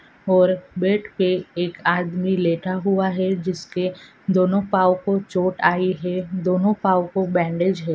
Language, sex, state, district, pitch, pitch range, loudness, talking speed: Hindi, female, Andhra Pradesh, Anantapur, 185 Hz, 180-190 Hz, -21 LUFS, 150 wpm